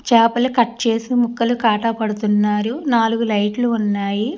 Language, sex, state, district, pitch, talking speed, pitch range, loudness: Telugu, male, Telangana, Hyderabad, 230 Hz, 125 wpm, 210-240 Hz, -18 LUFS